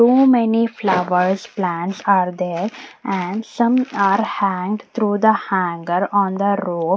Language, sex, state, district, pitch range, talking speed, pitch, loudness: English, female, Maharashtra, Mumbai Suburban, 180-220 Hz, 140 wpm, 200 Hz, -18 LUFS